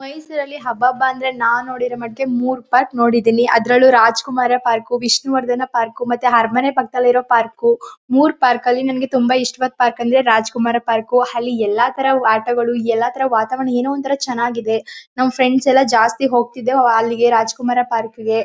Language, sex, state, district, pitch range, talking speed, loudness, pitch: Kannada, female, Karnataka, Mysore, 235-260 Hz, 155 wpm, -16 LUFS, 245 Hz